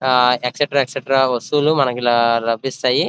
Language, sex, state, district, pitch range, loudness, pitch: Telugu, male, Andhra Pradesh, Krishna, 125-140 Hz, -17 LUFS, 130 Hz